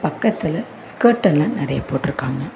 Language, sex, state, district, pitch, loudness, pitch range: Tamil, female, Tamil Nadu, Namakkal, 140 Hz, -19 LUFS, 135-195 Hz